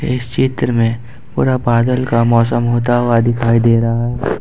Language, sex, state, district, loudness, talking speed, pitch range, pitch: Hindi, male, Jharkhand, Ranchi, -14 LUFS, 190 wpm, 115-125 Hz, 120 Hz